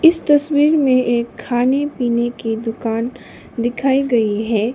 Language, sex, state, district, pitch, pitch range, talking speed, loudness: Hindi, female, Sikkim, Gangtok, 245 Hz, 230-275 Hz, 140 wpm, -17 LUFS